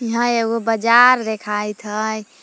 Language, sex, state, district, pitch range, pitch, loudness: Magahi, female, Jharkhand, Palamu, 215-235 Hz, 225 Hz, -17 LUFS